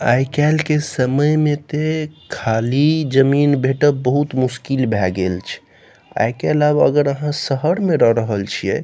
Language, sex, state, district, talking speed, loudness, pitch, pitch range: Maithili, male, Bihar, Saharsa, 170 wpm, -17 LUFS, 145 Hz, 125-150 Hz